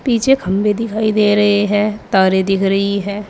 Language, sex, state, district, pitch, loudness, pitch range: Hindi, female, Uttar Pradesh, Saharanpur, 205 Hz, -15 LUFS, 195-215 Hz